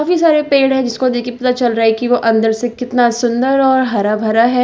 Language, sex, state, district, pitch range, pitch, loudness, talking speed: Hindi, female, Delhi, New Delhi, 230-260 Hz, 245 Hz, -14 LUFS, 270 wpm